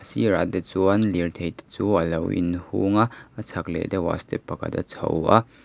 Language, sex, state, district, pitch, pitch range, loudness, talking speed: Mizo, male, Mizoram, Aizawl, 95 Hz, 85-105 Hz, -24 LUFS, 210 wpm